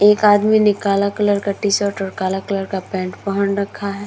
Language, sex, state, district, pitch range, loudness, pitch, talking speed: Hindi, female, Uttar Pradesh, Muzaffarnagar, 195-205 Hz, -18 LUFS, 200 Hz, 220 wpm